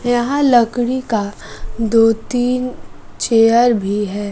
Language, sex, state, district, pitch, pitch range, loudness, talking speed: Hindi, female, Bihar, West Champaran, 235 Hz, 220-245 Hz, -16 LUFS, 110 wpm